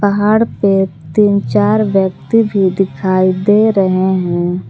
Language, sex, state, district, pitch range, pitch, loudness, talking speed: Hindi, female, Jharkhand, Palamu, 185-210 Hz, 195 Hz, -13 LUFS, 130 wpm